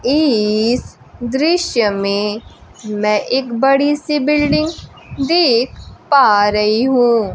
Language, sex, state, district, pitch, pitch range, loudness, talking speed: Hindi, female, Bihar, Kaimur, 245 Hz, 210-290 Hz, -15 LUFS, 100 wpm